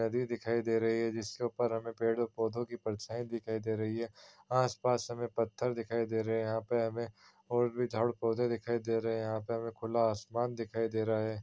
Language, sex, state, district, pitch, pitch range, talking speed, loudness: Hindi, male, Chhattisgarh, Raigarh, 115 Hz, 110-120 Hz, 220 wpm, -34 LUFS